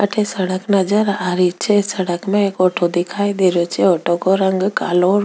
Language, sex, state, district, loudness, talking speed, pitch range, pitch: Rajasthani, female, Rajasthan, Nagaur, -17 LUFS, 215 wpm, 180-205 Hz, 190 Hz